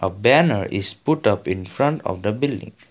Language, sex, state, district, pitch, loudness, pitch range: English, male, Assam, Kamrup Metropolitan, 105 Hz, -20 LUFS, 95-140 Hz